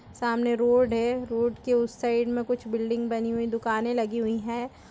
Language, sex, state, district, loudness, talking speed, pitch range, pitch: Hindi, female, Chhattisgarh, Kabirdham, -27 LUFS, 205 wpm, 230-240 Hz, 235 Hz